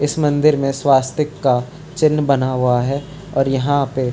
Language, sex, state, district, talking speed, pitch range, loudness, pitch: Hindi, male, Uttarakhand, Tehri Garhwal, 190 wpm, 130-150 Hz, -17 LUFS, 140 Hz